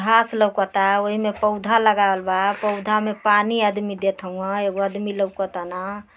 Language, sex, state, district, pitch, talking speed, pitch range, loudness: Bhojpuri, female, Uttar Pradesh, Ghazipur, 205 Hz, 145 wpm, 195-210 Hz, -21 LUFS